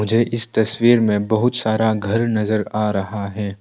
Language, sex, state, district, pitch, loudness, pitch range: Hindi, male, Arunachal Pradesh, Longding, 110 Hz, -18 LUFS, 105-115 Hz